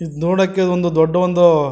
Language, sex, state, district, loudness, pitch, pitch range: Kannada, male, Karnataka, Mysore, -15 LUFS, 175 Hz, 160-180 Hz